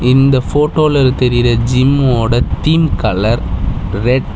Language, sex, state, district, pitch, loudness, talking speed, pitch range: Tamil, male, Tamil Nadu, Chennai, 125 Hz, -13 LUFS, 110 wpm, 115-135 Hz